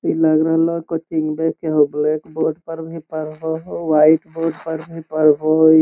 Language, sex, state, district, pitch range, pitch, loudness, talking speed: Magahi, male, Bihar, Lakhisarai, 155-160 Hz, 160 Hz, -18 LUFS, 175 wpm